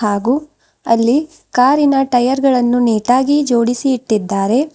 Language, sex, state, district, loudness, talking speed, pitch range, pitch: Kannada, female, Karnataka, Bidar, -14 LUFS, 100 wpm, 230-275 Hz, 250 Hz